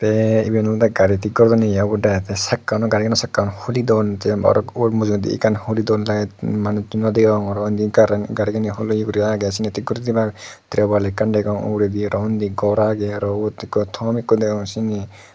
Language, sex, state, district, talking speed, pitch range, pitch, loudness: Chakma, male, Tripura, Unakoti, 140 wpm, 105-110 Hz, 105 Hz, -19 LUFS